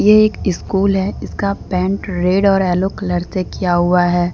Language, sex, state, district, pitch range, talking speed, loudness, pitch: Hindi, female, Jharkhand, Deoghar, 180-195 Hz, 180 wpm, -16 LUFS, 185 Hz